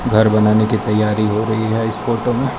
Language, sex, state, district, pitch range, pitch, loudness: Hindi, male, Arunachal Pradesh, Lower Dibang Valley, 105-115 Hz, 110 Hz, -16 LUFS